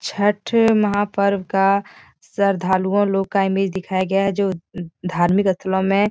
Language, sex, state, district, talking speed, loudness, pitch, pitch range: Hindi, female, Bihar, Jahanabad, 145 wpm, -19 LUFS, 195 Hz, 190-200 Hz